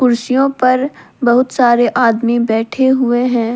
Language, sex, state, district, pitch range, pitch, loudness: Hindi, female, Jharkhand, Deoghar, 235-260 Hz, 245 Hz, -13 LUFS